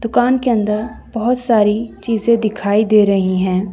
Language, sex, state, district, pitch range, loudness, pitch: Hindi, female, Jharkhand, Deoghar, 205-235 Hz, -16 LUFS, 215 Hz